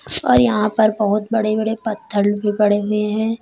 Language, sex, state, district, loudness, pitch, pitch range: Hindi, female, Uttar Pradesh, Lalitpur, -17 LUFS, 215 Hz, 210-220 Hz